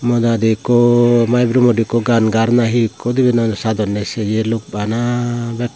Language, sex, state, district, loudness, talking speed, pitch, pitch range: Chakma, male, Tripura, Dhalai, -15 LUFS, 145 wpm, 115 Hz, 110-120 Hz